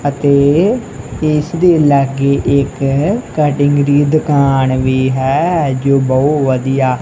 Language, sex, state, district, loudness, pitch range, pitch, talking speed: Punjabi, male, Punjab, Kapurthala, -13 LUFS, 135-150 Hz, 140 Hz, 110 wpm